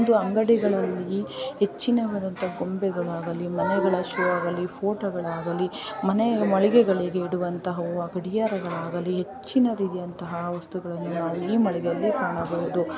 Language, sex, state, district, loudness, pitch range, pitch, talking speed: Kannada, female, Karnataka, Shimoga, -25 LUFS, 175-205 Hz, 185 Hz, 85 wpm